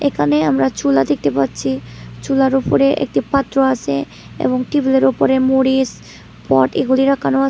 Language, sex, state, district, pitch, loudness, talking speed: Bengali, female, Tripura, West Tripura, 255 Hz, -16 LUFS, 150 wpm